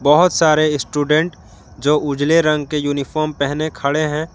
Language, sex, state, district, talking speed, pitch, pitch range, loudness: Hindi, male, Jharkhand, Garhwa, 150 wpm, 150 Hz, 140-155 Hz, -17 LUFS